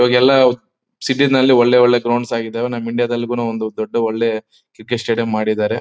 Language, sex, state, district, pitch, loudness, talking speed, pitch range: Kannada, male, Karnataka, Bellary, 120 Hz, -16 LUFS, 165 wpm, 115-125 Hz